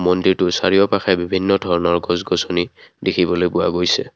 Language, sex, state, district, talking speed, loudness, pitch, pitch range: Assamese, male, Assam, Kamrup Metropolitan, 130 wpm, -18 LUFS, 90 Hz, 85-95 Hz